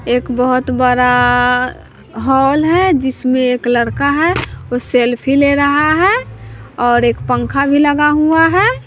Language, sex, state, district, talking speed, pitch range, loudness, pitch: Hindi, female, Bihar, West Champaran, 140 wpm, 245-290 Hz, -13 LUFS, 255 Hz